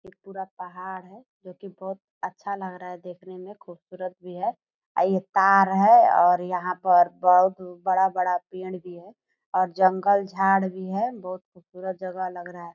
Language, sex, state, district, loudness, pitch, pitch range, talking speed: Hindi, female, Bihar, Purnia, -22 LUFS, 185 Hz, 180-195 Hz, 190 wpm